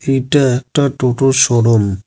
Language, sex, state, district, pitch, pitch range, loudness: Bengali, male, West Bengal, Cooch Behar, 130 Hz, 120-135 Hz, -13 LUFS